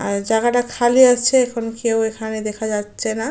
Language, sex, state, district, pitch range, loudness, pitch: Bengali, female, West Bengal, Jalpaiguri, 220-245 Hz, -18 LUFS, 225 Hz